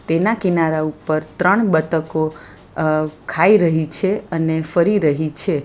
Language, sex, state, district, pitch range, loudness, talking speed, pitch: Gujarati, female, Gujarat, Valsad, 155-180 Hz, -18 LUFS, 140 wpm, 160 Hz